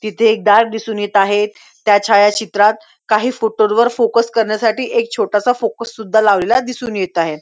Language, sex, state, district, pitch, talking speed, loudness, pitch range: Marathi, female, Maharashtra, Nagpur, 220 Hz, 170 wpm, -15 LUFS, 205-230 Hz